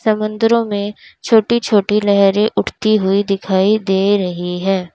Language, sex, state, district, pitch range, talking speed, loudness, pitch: Hindi, female, Uttar Pradesh, Lalitpur, 195-215 Hz, 135 wpm, -15 LUFS, 205 Hz